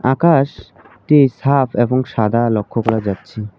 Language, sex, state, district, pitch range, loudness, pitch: Bengali, male, West Bengal, Alipurduar, 105-135 Hz, -16 LUFS, 120 Hz